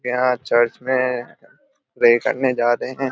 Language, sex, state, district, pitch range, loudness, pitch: Hindi, male, Bihar, Darbhanga, 120-130 Hz, -19 LUFS, 125 Hz